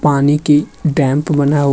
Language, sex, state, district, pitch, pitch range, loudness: Hindi, male, Uttar Pradesh, Hamirpur, 145 Hz, 140-150 Hz, -14 LUFS